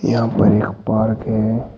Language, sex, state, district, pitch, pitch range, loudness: Hindi, male, Uttar Pradesh, Shamli, 110 Hz, 110-115 Hz, -17 LUFS